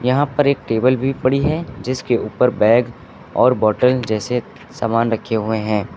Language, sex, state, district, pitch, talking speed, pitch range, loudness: Hindi, male, Uttar Pradesh, Lucknow, 125 Hz, 170 wpm, 110-130 Hz, -18 LUFS